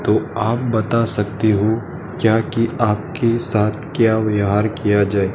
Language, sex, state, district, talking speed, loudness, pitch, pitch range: Hindi, male, Madhya Pradesh, Dhar, 155 wpm, -18 LUFS, 110 Hz, 105-115 Hz